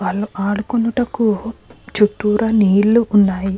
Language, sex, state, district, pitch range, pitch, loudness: Telugu, female, Andhra Pradesh, Krishna, 200-230 Hz, 210 Hz, -16 LUFS